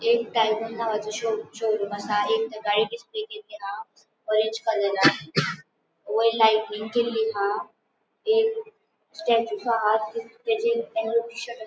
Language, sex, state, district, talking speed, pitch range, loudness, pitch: Konkani, female, Goa, North and South Goa, 90 wpm, 215-235 Hz, -25 LUFS, 225 Hz